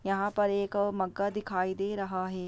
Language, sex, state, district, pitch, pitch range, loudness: Hindi, female, Chhattisgarh, Bastar, 195 Hz, 185-205 Hz, -31 LUFS